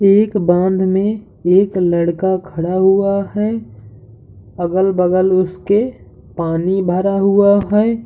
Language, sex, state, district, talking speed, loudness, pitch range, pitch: Hindi, male, Uttar Pradesh, Hamirpur, 110 wpm, -15 LUFS, 175-200 Hz, 190 Hz